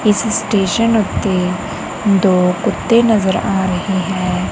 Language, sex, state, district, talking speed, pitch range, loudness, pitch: Punjabi, female, Punjab, Kapurthala, 120 wpm, 185-215 Hz, -15 LUFS, 195 Hz